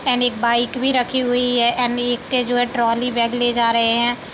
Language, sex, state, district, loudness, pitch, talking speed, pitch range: Hindi, female, Uttar Pradesh, Deoria, -18 LUFS, 245 Hz, 205 wpm, 235-245 Hz